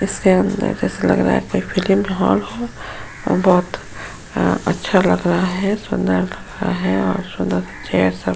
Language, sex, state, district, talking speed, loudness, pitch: Hindi, female, Uttar Pradesh, Jyotiba Phule Nagar, 145 wpm, -18 LUFS, 135 Hz